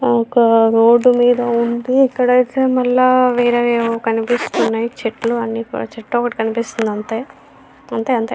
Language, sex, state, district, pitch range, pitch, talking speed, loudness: Telugu, female, Andhra Pradesh, Visakhapatnam, 230-250 Hz, 235 Hz, 130 wpm, -16 LUFS